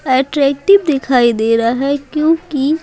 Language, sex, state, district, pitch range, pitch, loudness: Hindi, female, Bihar, Patna, 255-305 Hz, 280 Hz, -14 LUFS